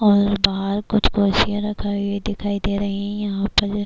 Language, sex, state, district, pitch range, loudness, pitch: Urdu, female, Bihar, Kishanganj, 200-205 Hz, -21 LUFS, 205 Hz